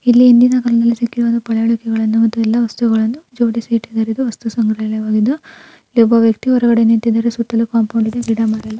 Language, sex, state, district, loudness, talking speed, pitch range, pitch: Kannada, female, Karnataka, Dakshina Kannada, -14 LUFS, 35 wpm, 225-235 Hz, 230 Hz